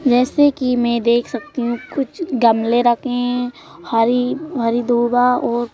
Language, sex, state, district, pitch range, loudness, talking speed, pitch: Hindi, female, Madhya Pradesh, Bhopal, 235-255 Hz, -17 LUFS, 145 wpm, 245 Hz